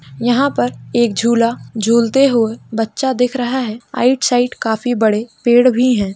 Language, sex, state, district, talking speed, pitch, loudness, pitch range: Hindi, female, Uttar Pradesh, Hamirpur, 165 wpm, 235 Hz, -15 LUFS, 220-250 Hz